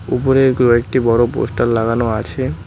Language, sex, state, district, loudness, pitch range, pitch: Bengali, male, West Bengal, Cooch Behar, -15 LUFS, 115-125 Hz, 120 Hz